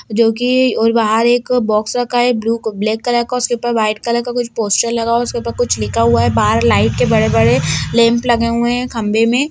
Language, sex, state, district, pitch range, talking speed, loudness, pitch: Hindi, female, Bihar, Jamui, 215-240 Hz, 240 wpm, -14 LUFS, 230 Hz